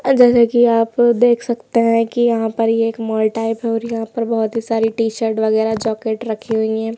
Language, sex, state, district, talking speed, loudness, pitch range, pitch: Hindi, male, Madhya Pradesh, Bhopal, 205 wpm, -16 LUFS, 220-235 Hz, 225 Hz